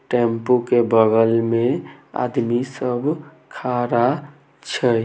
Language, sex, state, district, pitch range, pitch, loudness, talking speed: Maithili, male, Bihar, Samastipur, 115-130 Hz, 120 Hz, -20 LUFS, 95 wpm